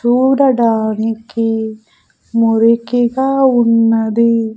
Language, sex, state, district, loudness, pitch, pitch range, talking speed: Telugu, female, Andhra Pradesh, Sri Satya Sai, -13 LUFS, 230 Hz, 225-245 Hz, 40 wpm